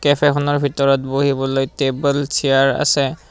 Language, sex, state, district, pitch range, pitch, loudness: Assamese, male, Assam, Kamrup Metropolitan, 135-145 Hz, 140 Hz, -17 LUFS